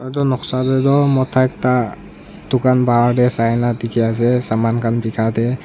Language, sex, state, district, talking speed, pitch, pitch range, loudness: Nagamese, male, Nagaland, Dimapur, 180 wpm, 125 Hz, 115-130 Hz, -16 LUFS